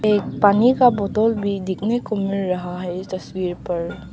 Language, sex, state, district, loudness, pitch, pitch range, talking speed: Hindi, female, Arunachal Pradesh, Papum Pare, -20 LUFS, 195 Hz, 185-215 Hz, 175 wpm